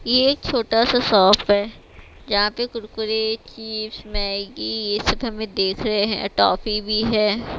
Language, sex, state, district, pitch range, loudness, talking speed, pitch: Hindi, female, Bihar, West Champaran, 205-230 Hz, -20 LUFS, 160 wpm, 215 Hz